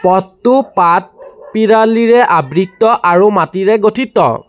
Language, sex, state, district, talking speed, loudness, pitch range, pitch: Assamese, male, Assam, Sonitpur, 95 wpm, -11 LUFS, 190-240 Hz, 220 Hz